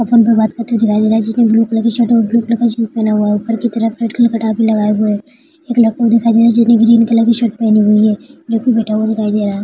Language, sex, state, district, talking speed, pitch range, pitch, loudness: Hindi, female, Maharashtra, Dhule, 335 wpm, 220-235 Hz, 230 Hz, -12 LUFS